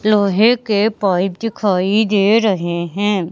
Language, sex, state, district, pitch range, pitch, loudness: Hindi, female, Madhya Pradesh, Katni, 190-215 Hz, 205 Hz, -16 LUFS